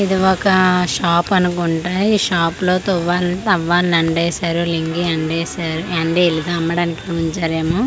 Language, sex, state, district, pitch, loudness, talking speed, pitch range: Telugu, female, Andhra Pradesh, Manyam, 175 Hz, -17 LUFS, 120 wpm, 165-180 Hz